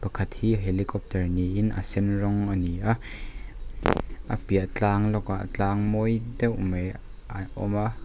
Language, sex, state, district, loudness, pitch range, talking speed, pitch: Mizo, male, Mizoram, Aizawl, -27 LUFS, 95-110 Hz, 155 wpm, 100 Hz